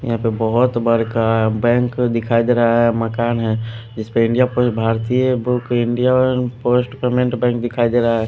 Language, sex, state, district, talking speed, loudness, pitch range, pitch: Hindi, male, Delhi, New Delhi, 165 wpm, -17 LUFS, 115-125 Hz, 120 Hz